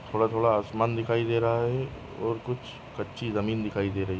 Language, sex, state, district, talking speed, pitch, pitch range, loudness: Hindi, male, Maharashtra, Nagpur, 200 wpm, 115 Hz, 105-115 Hz, -28 LUFS